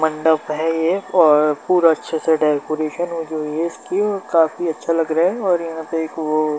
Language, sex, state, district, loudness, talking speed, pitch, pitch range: Hindi, male, Bihar, Darbhanga, -18 LUFS, 220 wpm, 160 Hz, 155-170 Hz